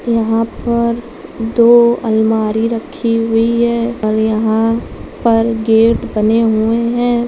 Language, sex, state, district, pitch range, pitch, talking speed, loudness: Hindi, female, Uttar Pradesh, Budaun, 220-235 Hz, 230 Hz, 115 wpm, -14 LUFS